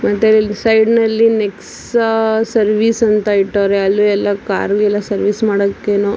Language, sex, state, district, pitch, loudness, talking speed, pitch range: Kannada, female, Karnataka, Dakshina Kannada, 210 Hz, -14 LUFS, 145 wpm, 200-220 Hz